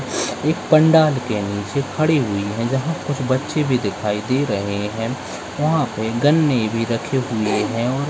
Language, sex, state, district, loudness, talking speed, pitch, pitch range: Hindi, male, Uttar Pradesh, Deoria, -20 LUFS, 180 wpm, 125 Hz, 105-145 Hz